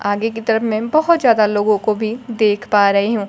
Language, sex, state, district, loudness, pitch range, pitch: Hindi, female, Bihar, Kaimur, -16 LUFS, 210-230 Hz, 220 Hz